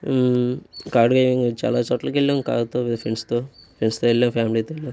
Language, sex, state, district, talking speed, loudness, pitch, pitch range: Telugu, male, Andhra Pradesh, Guntur, 160 wpm, -21 LUFS, 120 Hz, 115-130 Hz